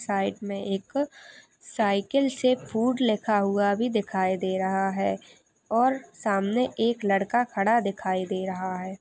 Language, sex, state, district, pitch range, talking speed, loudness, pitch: Hindi, female, Chhattisgarh, Balrampur, 195-240 Hz, 145 wpm, -26 LUFS, 205 Hz